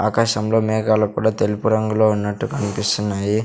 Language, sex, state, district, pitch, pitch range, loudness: Telugu, male, Andhra Pradesh, Sri Satya Sai, 110 Hz, 105-110 Hz, -19 LUFS